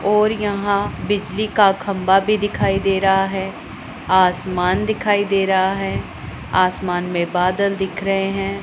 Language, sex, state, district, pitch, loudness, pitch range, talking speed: Hindi, male, Punjab, Pathankot, 195 Hz, -18 LUFS, 185-200 Hz, 145 wpm